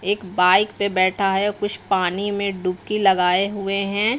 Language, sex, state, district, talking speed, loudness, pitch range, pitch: Hindi, female, Bihar, Patna, 170 wpm, -19 LUFS, 185-205 Hz, 195 Hz